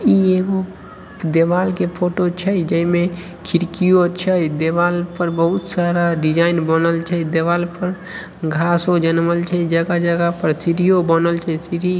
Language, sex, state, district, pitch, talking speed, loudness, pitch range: Maithili, female, Bihar, Samastipur, 175 Hz, 140 wpm, -17 LUFS, 165-180 Hz